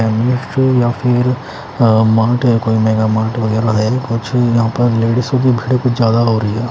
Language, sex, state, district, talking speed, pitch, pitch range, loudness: Hindi, male, Chandigarh, Chandigarh, 180 wpm, 115 Hz, 110-125 Hz, -14 LUFS